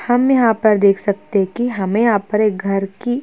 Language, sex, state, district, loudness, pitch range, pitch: Hindi, female, Maharashtra, Chandrapur, -16 LUFS, 195-240 Hz, 210 Hz